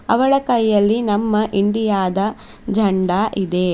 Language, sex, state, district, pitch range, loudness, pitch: Kannada, female, Karnataka, Bidar, 195-220 Hz, -17 LUFS, 210 Hz